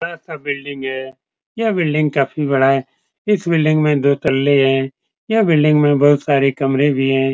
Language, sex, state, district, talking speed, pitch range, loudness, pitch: Hindi, male, Bihar, Supaul, 180 wpm, 135-155 Hz, -16 LUFS, 145 Hz